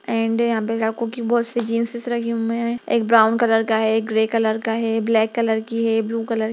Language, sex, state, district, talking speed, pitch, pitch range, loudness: Hindi, female, Bihar, Darbhanga, 255 wpm, 225 Hz, 225-230 Hz, -20 LUFS